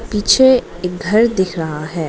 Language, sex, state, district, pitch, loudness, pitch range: Hindi, female, Arunachal Pradesh, Lower Dibang Valley, 185 Hz, -15 LUFS, 165-215 Hz